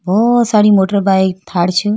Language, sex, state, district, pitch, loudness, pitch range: Hindi, female, Uttarakhand, Uttarkashi, 200 Hz, -12 LUFS, 190-210 Hz